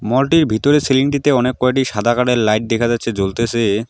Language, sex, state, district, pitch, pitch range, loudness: Bengali, male, West Bengal, Alipurduar, 120 Hz, 115-135 Hz, -16 LUFS